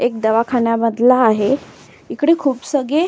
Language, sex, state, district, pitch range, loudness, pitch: Marathi, female, Maharashtra, Solapur, 230-280 Hz, -16 LUFS, 245 Hz